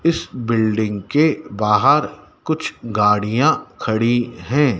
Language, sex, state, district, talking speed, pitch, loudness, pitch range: Hindi, male, Madhya Pradesh, Dhar, 100 wpm, 115 Hz, -18 LUFS, 105-145 Hz